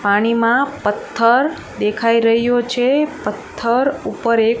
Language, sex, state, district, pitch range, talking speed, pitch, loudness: Gujarati, female, Gujarat, Gandhinagar, 230-260 Hz, 105 wpm, 235 Hz, -17 LUFS